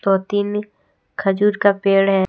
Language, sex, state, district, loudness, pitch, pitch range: Hindi, female, Jharkhand, Deoghar, -18 LUFS, 195 Hz, 190-205 Hz